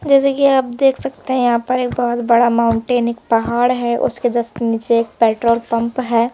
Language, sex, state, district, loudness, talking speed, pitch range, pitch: Hindi, female, Madhya Pradesh, Bhopal, -16 LUFS, 210 wpm, 235-250 Hz, 240 Hz